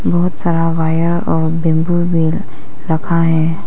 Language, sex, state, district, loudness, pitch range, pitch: Hindi, female, Arunachal Pradesh, Papum Pare, -15 LUFS, 160-170 Hz, 165 Hz